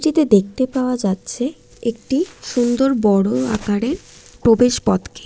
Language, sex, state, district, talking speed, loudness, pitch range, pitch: Bengali, female, West Bengal, Jalpaiguri, 115 wpm, -18 LUFS, 215-265 Hz, 245 Hz